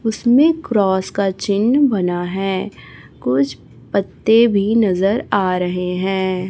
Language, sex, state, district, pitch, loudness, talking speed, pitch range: Hindi, female, Chhattisgarh, Raipur, 195 Hz, -17 LUFS, 120 wpm, 185-220 Hz